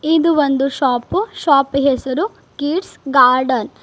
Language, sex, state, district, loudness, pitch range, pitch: Kannada, female, Karnataka, Bidar, -16 LUFS, 260-320 Hz, 275 Hz